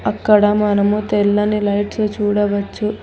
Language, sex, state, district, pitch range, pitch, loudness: Telugu, female, Telangana, Hyderabad, 205-210 Hz, 210 Hz, -16 LUFS